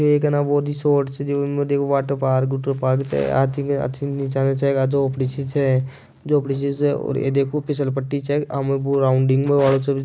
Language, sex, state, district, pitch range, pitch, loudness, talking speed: Marwari, male, Rajasthan, Nagaur, 135-140 Hz, 140 Hz, -20 LUFS, 135 wpm